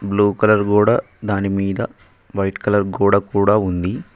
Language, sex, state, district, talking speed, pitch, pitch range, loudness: Telugu, male, Telangana, Mahabubabad, 130 wpm, 100 Hz, 100-105 Hz, -18 LUFS